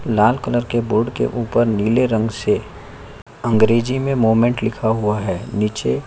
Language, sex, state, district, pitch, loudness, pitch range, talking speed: Hindi, male, Chhattisgarh, Kabirdham, 115 Hz, -18 LUFS, 110-120 Hz, 170 wpm